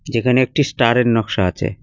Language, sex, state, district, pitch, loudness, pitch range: Bengali, male, West Bengal, Cooch Behar, 120 Hz, -17 LUFS, 105-125 Hz